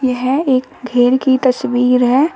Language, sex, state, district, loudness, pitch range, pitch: Hindi, female, Uttar Pradesh, Shamli, -14 LUFS, 250-260 Hz, 255 Hz